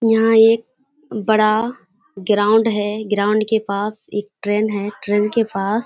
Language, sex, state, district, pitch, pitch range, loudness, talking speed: Hindi, female, Bihar, Kishanganj, 215 Hz, 205-225 Hz, -18 LUFS, 155 wpm